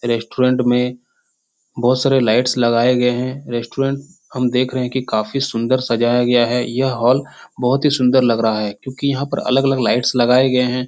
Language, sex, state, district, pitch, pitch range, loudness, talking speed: Hindi, male, Bihar, Supaul, 125 Hz, 120-130 Hz, -17 LUFS, 195 wpm